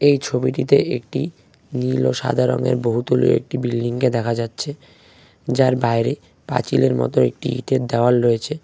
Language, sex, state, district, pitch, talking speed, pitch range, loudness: Bengali, male, West Bengal, Cooch Behar, 125 Hz, 140 wpm, 115-130 Hz, -19 LUFS